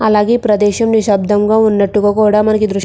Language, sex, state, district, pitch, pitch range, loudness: Telugu, female, Andhra Pradesh, Krishna, 210 Hz, 205-220 Hz, -12 LUFS